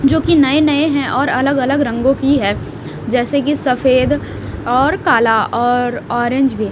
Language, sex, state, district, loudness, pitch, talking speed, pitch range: Hindi, female, Haryana, Rohtak, -14 LUFS, 265 Hz, 170 wpm, 240-285 Hz